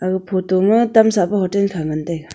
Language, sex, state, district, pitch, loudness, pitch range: Wancho, female, Arunachal Pradesh, Longding, 185 Hz, -17 LUFS, 180-200 Hz